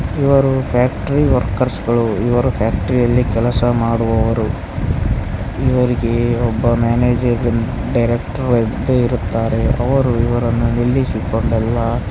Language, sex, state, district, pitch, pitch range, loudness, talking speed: Kannada, male, Karnataka, Bellary, 120 Hz, 115-125 Hz, -16 LUFS, 100 wpm